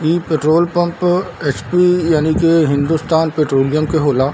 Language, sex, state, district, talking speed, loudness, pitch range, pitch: Hindi, male, Bihar, Darbhanga, 150 wpm, -15 LUFS, 150-170 Hz, 160 Hz